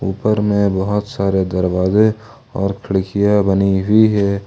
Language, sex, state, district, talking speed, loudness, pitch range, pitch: Hindi, male, Jharkhand, Ranchi, 135 wpm, -16 LUFS, 95-105 Hz, 100 Hz